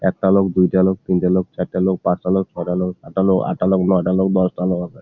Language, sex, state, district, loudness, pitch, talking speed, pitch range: Bengali, male, West Bengal, Jalpaiguri, -18 LUFS, 95 Hz, 240 wpm, 90-95 Hz